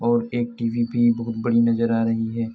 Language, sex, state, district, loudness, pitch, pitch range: Hindi, male, Uttar Pradesh, Etah, -22 LUFS, 115 Hz, 115-120 Hz